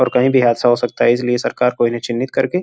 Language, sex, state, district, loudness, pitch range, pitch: Hindi, male, Uttar Pradesh, Gorakhpur, -16 LUFS, 120-130 Hz, 125 Hz